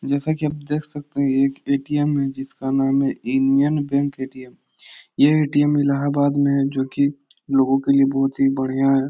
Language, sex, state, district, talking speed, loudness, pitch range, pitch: Hindi, male, Bihar, Jahanabad, 230 wpm, -20 LUFS, 135-145 Hz, 140 Hz